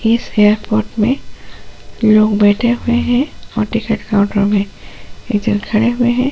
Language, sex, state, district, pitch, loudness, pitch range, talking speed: Hindi, female, Goa, North and South Goa, 215 Hz, -15 LUFS, 205-235 Hz, 135 wpm